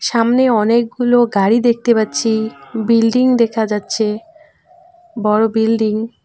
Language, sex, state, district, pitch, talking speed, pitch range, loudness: Bengali, female, West Bengal, Cooch Behar, 230 Hz, 105 wpm, 220-245 Hz, -15 LUFS